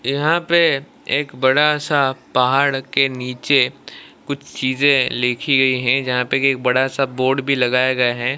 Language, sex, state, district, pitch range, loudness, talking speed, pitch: Hindi, male, Odisha, Malkangiri, 125-140 Hz, -17 LUFS, 165 wpm, 135 Hz